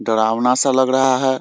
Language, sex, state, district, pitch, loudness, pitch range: Hindi, male, Bihar, Muzaffarpur, 130 Hz, -16 LUFS, 115-130 Hz